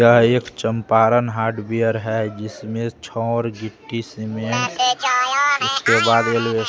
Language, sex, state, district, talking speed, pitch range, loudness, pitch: Hindi, male, Bihar, West Champaran, 115 wpm, 110-120 Hz, -19 LUFS, 115 Hz